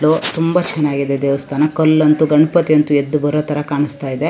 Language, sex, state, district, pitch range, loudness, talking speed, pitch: Kannada, female, Karnataka, Shimoga, 145-155 Hz, -15 LUFS, 155 wpm, 150 Hz